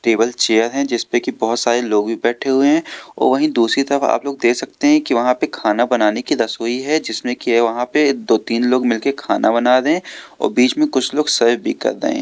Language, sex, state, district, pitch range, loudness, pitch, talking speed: Hindi, male, Uttar Pradesh, Lucknow, 115-140 Hz, -17 LUFS, 125 Hz, 250 wpm